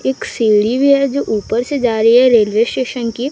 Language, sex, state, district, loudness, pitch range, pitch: Hindi, female, Odisha, Sambalpur, -14 LUFS, 225-265 Hz, 240 Hz